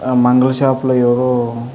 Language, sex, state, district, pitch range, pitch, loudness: Telugu, male, Andhra Pradesh, Anantapur, 120-130 Hz, 125 Hz, -14 LUFS